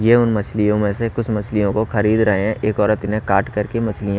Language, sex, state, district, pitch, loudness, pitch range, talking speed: Hindi, male, Haryana, Rohtak, 105 Hz, -18 LUFS, 105-110 Hz, 255 wpm